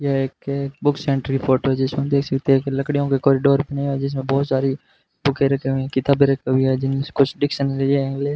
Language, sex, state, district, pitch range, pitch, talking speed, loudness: Hindi, male, Rajasthan, Bikaner, 135-140 Hz, 135 Hz, 260 wpm, -20 LUFS